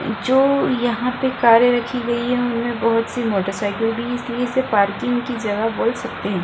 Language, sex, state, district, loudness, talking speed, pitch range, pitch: Hindi, female, Bihar, Kishanganj, -19 LUFS, 185 wpm, 225-245 Hz, 240 Hz